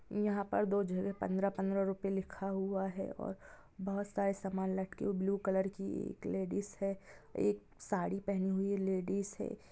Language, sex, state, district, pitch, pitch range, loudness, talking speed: Hindi, female, Bihar, Gopalganj, 195 Hz, 190-200 Hz, -37 LUFS, 160 wpm